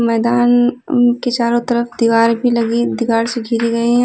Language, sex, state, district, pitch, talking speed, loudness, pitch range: Hindi, female, Odisha, Nuapada, 235 Hz, 195 wpm, -15 LUFS, 230-245 Hz